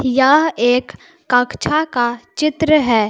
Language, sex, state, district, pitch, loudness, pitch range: Hindi, female, Jharkhand, Palamu, 260 Hz, -16 LUFS, 245-305 Hz